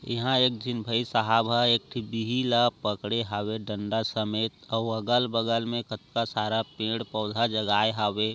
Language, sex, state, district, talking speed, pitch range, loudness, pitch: Chhattisgarhi, male, Chhattisgarh, Raigarh, 165 wpm, 110-120 Hz, -27 LUFS, 115 Hz